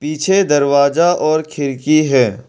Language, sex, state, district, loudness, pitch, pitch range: Hindi, male, Arunachal Pradesh, Longding, -14 LUFS, 150 Hz, 140-155 Hz